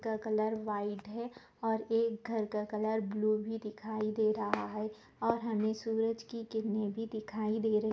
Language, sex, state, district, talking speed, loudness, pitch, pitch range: Hindi, female, Jharkhand, Sahebganj, 195 wpm, -35 LUFS, 220 Hz, 215-225 Hz